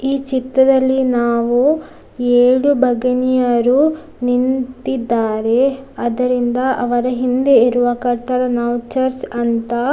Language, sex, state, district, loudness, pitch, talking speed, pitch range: Kannada, female, Karnataka, Dakshina Kannada, -16 LUFS, 250 Hz, 90 wpm, 240-265 Hz